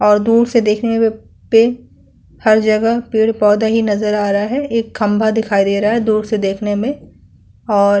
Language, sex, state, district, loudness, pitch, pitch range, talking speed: Hindi, female, Uttar Pradesh, Hamirpur, -15 LUFS, 220 Hz, 210-230 Hz, 195 wpm